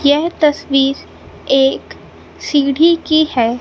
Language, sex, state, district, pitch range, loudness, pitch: Hindi, male, Madhya Pradesh, Katni, 270-315 Hz, -14 LUFS, 290 Hz